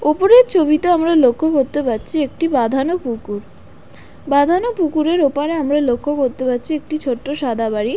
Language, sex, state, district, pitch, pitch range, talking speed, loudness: Bengali, female, West Bengal, Dakshin Dinajpur, 290 Hz, 255-320 Hz, 150 wpm, -16 LUFS